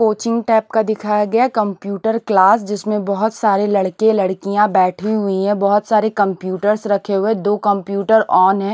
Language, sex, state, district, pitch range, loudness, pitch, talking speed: Hindi, female, Punjab, Pathankot, 200-220 Hz, -16 LUFS, 210 Hz, 165 wpm